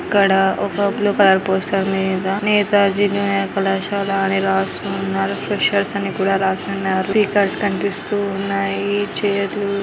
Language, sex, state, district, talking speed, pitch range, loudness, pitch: Telugu, female, Andhra Pradesh, Anantapur, 135 wpm, 195-200 Hz, -18 LUFS, 195 Hz